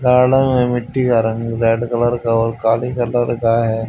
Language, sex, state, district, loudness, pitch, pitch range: Hindi, male, Haryana, Charkhi Dadri, -16 LUFS, 120 Hz, 115-125 Hz